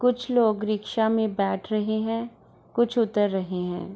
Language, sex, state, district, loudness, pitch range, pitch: Hindi, female, Bihar, Gopalganj, -25 LUFS, 200-230 Hz, 215 Hz